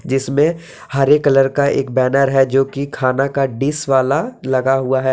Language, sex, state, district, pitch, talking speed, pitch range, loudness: Hindi, male, Jharkhand, Deoghar, 135 Hz, 185 wpm, 135-140 Hz, -16 LUFS